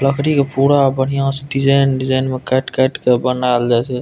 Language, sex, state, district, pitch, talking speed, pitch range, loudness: Maithili, male, Bihar, Purnia, 130 Hz, 210 wpm, 125-135 Hz, -15 LUFS